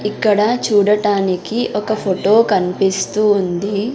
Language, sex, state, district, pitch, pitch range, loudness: Telugu, female, Andhra Pradesh, Sri Satya Sai, 205 Hz, 195-215 Hz, -16 LUFS